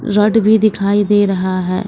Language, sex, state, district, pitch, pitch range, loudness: Hindi, female, Uttar Pradesh, Lucknow, 205 Hz, 195-210 Hz, -13 LUFS